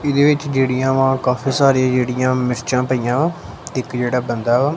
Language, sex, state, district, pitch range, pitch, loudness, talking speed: Punjabi, male, Punjab, Kapurthala, 125-135 Hz, 130 Hz, -18 LUFS, 150 wpm